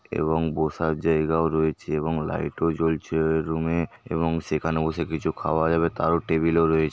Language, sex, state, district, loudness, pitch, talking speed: Bengali, male, West Bengal, Paschim Medinipur, -24 LUFS, 80 Hz, 155 wpm